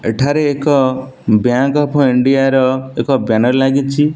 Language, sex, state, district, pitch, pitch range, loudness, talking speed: Odia, male, Odisha, Nuapada, 135 Hz, 125-140 Hz, -14 LUFS, 130 wpm